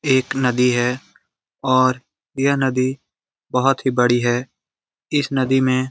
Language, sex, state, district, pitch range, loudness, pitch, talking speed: Hindi, male, Bihar, Saran, 125-135 Hz, -19 LUFS, 130 Hz, 150 wpm